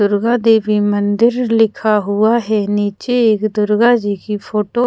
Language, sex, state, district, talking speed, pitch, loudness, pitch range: Hindi, female, Odisha, Khordha, 160 wpm, 215 Hz, -15 LUFS, 205-230 Hz